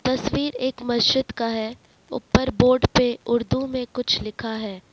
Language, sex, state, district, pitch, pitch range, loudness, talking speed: Hindi, male, Jharkhand, Ranchi, 245 Hz, 230-255 Hz, -22 LUFS, 160 wpm